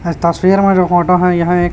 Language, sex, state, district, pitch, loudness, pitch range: Hindi, male, Chhattisgarh, Raipur, 180 Hz, -12 LUFS, 175-185 Hz